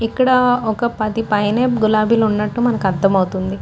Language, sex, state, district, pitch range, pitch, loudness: Telugu, female, Andhra Pradesh, Guntur, 205-235 Hz, 220 Hz, -16 LUFS